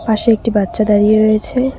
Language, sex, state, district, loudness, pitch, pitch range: Bengali, female, West Bengal, Cooch Behar, -13 LUFS, 215 Hz, 215-230 Hz